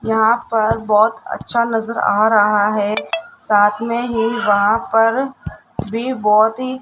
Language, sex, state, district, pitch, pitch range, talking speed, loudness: Hindi, female, Rajasthan, Jaipur, 225 Hz, 210-235 Hz, 150 wpm, -16 LUFS